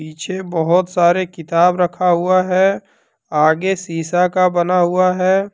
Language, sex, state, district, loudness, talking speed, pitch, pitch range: Hindi, male, Jharkhand, Deoghar, -16 LUFS, 140 wpm, 180 Hz, 170-185 Hz